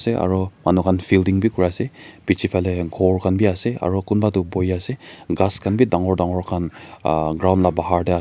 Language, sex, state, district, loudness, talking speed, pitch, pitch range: Nagamese, male, Nagaland, Dimapur, -20 LUFS, 220 wpm, 95 Hz, 90-100 Hz